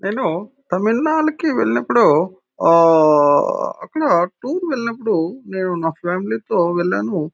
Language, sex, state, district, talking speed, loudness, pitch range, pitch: Telugu, male, Andhra Pradesh, Anantapur, 105 wpm, -17 LUFS, 165-260 Hz, 185 Hz